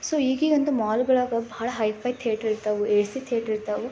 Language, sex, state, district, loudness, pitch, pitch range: Kannada, female, Karnataka, Belgaum, -25 LUFS, 230 Hz, 215-260 Hz